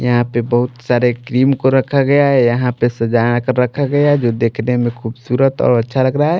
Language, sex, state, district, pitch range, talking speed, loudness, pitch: Hindi, male, Maharashtra, Washim, 120-135 Hz, 235 wpm, -15 LUFS, 125 Hz